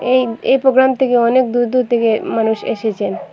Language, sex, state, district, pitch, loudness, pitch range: Bengali, female, Assam, Hailakandi, 245 Hz, -15 LUFS, 225-255 Hz